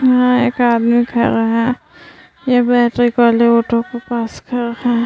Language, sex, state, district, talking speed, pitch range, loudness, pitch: Hindi, female, Uttar Pradesh, Varanasi, 70 wpm, 235-245 Hz, -14 LUFS, 240 Hz